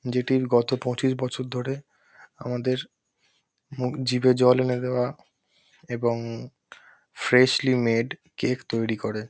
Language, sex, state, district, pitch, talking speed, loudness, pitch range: Bengali, male, West Bengal, Kolkata, 125 Hz, 110 wpm, -25 LUFS, 125-130 Hz